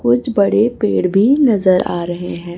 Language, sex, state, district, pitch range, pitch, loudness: Hindi, female, Chhattisgarh, Raipur, 175-220 Hz, 195 Hz, -15 LUFS